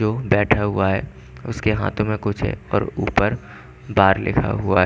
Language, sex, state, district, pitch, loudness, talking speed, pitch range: Hindi, male, Chandigarh, Chandigarh, 105 Hz, -20 LUFS, 185 wpm, 95-110 Hz